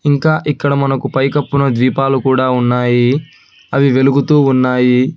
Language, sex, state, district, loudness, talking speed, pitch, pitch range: Telugu, male, Telangana, Hyderabad, -13 LUFS, 115 wpm, 135 Hz, 130-140 Hz